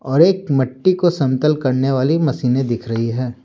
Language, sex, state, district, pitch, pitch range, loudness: Hindi, male, Bihar, Patna, 135 Hz, 125-155 Hz, -17 LUFS